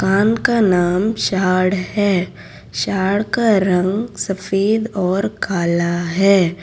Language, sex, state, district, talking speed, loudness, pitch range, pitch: Hindi, female, Gujarat, Valsad, 110 wpm, -17 LUFS, 180-205 Hz, 195 Hz